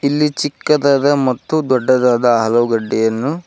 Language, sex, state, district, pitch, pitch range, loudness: Kannada, male, Karnataka, Koppal, 130 Hz, 120-145 Hz, -15 LUFS